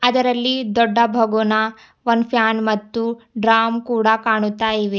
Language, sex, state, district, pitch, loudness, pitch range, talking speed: Kannada, female, Karnataka, Bidar, 225 Hz, -18 LUFS, 220-235 Hz, 120 wpm